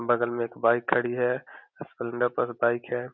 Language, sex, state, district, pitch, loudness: Hindi, male, Bihar, Gopalganj, 120 Hz, -27 LUFS